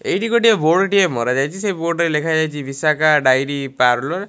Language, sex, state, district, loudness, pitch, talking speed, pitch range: Odia, male, Odisha, Malkangiri, -17 LUFS, 155 Hz, 180 wpm, 135-185 Hz